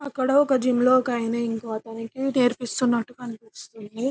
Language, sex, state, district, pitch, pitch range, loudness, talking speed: Telugu, female, Telangana, Karimnagar, 245 Hz, 225-255 Hz, -23 LUFS, 145 wpm